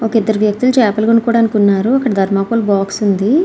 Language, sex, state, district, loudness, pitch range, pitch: Telugu, female, Andhra Pradesh, Srikakulam, -13 LUFS, 200-230 Hz, 220 Hz